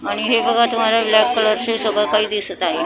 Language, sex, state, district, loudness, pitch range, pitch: Marathi, female, Maharashtra, Mumbai Suburban, -17 LUFS, 215-235 Hz, 220 Hz